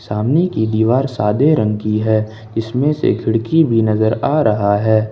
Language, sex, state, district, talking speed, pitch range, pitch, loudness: Hindi, male, Jharkhand, Ranchi, 175 wpm, 110-125 Hz, 110 Hz, -16 LUFS